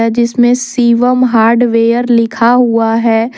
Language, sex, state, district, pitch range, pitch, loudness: Hindi, female, Jharkhand, Deoghar, 230-245 Hz, 235 Hz, -10 LUFS